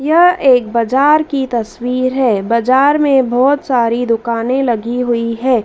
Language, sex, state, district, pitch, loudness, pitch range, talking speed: Hindi, female, Madhya Pradesh, Dhar, 250 Hz, -13 LUFS, 235-270 Hz, 150 wpm